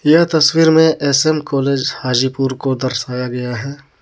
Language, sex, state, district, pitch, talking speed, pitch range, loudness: Hindi, male, Jharkhand, Deoghar, 135 Hz, 165 wpm, 130-155 Hz, -15 LUFS